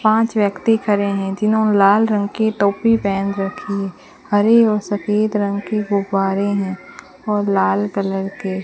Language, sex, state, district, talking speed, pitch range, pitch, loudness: Hindi, female, Rajasthan, Bikaner, 160 wpm, 195-215 Hz, 205 Hz, -18 LUFS